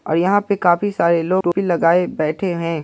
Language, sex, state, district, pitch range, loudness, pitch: Hindi, male, Bihar, Purnia, 165-190 Hz, -17 LUFS, 175 Hz